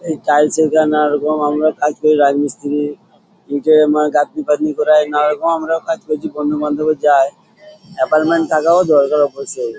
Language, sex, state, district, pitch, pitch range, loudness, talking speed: Bengali, male, West Bengal, Paschim Medinipur, 150 Hz, 150-160 Hz, -15 LUFS, 155 wpm